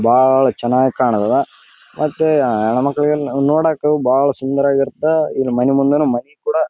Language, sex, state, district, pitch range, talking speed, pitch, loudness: Kannada, male, Karnataka, Raichur, 130-150 Hz, 160 wpm, 140 Hz, -16 LUFS